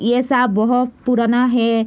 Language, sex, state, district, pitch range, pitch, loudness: Hindi, female, Bihar, Madhepura, 230-250 Hz, 245 Hz, -16 LUFS